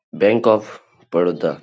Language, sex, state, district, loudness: Hindi, male, Bihar, Lakhisarai, -18 LUFS